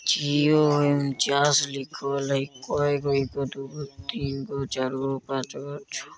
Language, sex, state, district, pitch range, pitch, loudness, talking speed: Bajjika, male, Bihar, Vaishali, 135-145 Hz, 140 Hz, -25 LUFS, 125 wpm